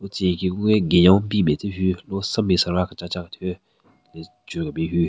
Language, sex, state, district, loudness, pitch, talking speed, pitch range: Rengma, male, Nagaland, Kohima, -21 LUFS, 95 Hz, 200 wpm, 90-100 Hz